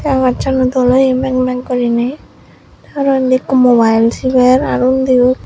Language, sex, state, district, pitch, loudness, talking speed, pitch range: Chakma, female, Tripura, Dhalai, 255 Hz, -12 LUFS, 155 wpm, 250-260 Hz